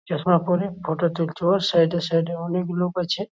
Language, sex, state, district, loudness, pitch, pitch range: Bengali, male, West Bengal, Jhargram, -22 LUFS, 175 Hz, 170-180 Hz